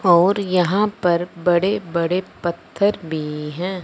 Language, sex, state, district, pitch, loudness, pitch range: Hindi, male, Punjab, Fazilka, 180 Hz, -20 LUFS, 170-195 Hz